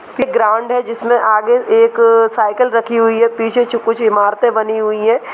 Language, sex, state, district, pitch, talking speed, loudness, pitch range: Hindi, female, Uttar Pradesh, Budaun, 230 Hz, 190 wpm, -13 LUFS, 220-240 Hz